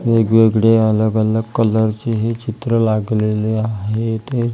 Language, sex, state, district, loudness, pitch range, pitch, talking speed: Marathi, female, Maharashtra, Gondia, -16 LUFS, 110-115 Hz, 110 Hz, 130 wpm